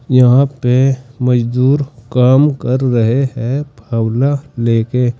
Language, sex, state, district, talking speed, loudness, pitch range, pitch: Hindi, male, Uttar Pradesh, Saharanpur, 105 wpm, -14 LUFS, 120-135 Hz, 125 Hz